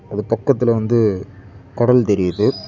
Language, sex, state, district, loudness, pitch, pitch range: Tamil, male, Tamil Nadu, Kanyakumari, -17 LUFS, 110 Hz, 100-120 Hz